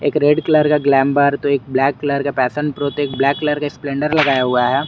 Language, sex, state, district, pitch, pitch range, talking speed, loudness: Hindi, male, Jharkhand, Garhwa, 140 Hz, 135-150 Hz, 245 wpm, -16 LUFS